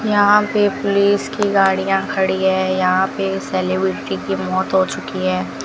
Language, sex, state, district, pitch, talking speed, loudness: Hindi, female, Rajasthan, Bikaner, 190 Hz, 160 wpm, -17 LUFS